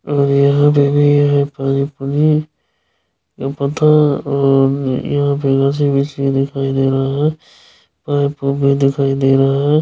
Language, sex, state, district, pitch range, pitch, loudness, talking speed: Maithili, male, Bihar, Supaul, 135-145 Hz, 140 Hz, -15 LUFS, 115 wpm